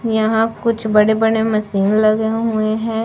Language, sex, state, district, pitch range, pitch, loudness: Hindi, female, Bihar, West Champaran, 215-225 Hz, 220 Hz, -16 LUFS